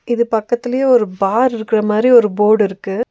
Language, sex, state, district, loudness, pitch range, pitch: Tamil, female, Tamil Nadu, Nilgiris, -14 LUFS, 210-240 Hz, 225 Hz